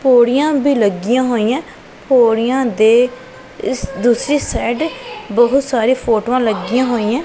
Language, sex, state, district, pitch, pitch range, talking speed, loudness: Punjabi, female, Punjab, Pathankot, 245 Hz, 230-260 Hz, 105 wpm, -15 LUFS